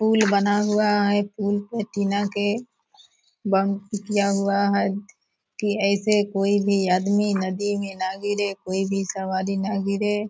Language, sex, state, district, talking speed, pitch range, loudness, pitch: Hindi, female, Bihar, Purnia, 150 wpm, 195-205 Hz, -23 LUFS, 205 Hz